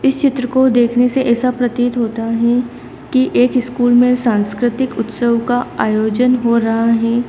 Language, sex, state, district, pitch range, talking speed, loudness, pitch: Hindi, female, Uttar Pradesh, Lalitpur, 235-250 Hz, 155 wpm, -15 LUFS, 245 Hz